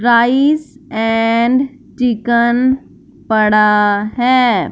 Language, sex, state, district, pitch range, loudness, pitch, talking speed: Hindi, female, Punjab, Fazilka, 220-255 Hz, -14 LUFS, 235 Hz, 65 wpm